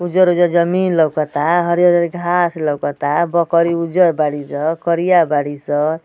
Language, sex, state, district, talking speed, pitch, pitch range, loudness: Bhojpuri, male, Uttar Pradesh, Ghazipur, 130 wpm, 170 Hz, 155-175 Hz, -16 LUFS